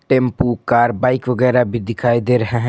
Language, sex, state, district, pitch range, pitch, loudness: Hindi, male, Jharkhand, Ranchi, 120-125 Hz, 120 Hz, -16 LUFS